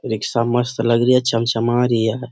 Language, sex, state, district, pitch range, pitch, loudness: Hindi, male, Bihar, Jamui, 115-125 Hz, 120 Hz, -18 LUFS